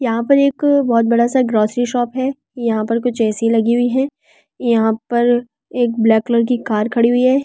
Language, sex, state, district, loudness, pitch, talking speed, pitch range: Hindi, female, Delhi, New Delhi, -16 LUFS, 240 Hz, 210 wpm, 230-255 Hz